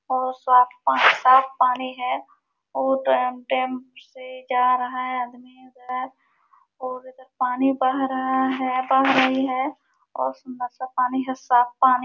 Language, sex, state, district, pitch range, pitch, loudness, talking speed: Hindi, female, Uttar Pradesh, Jalaun, 250-260 Hz, 255 Hz, -22 LUFS, 90 wpm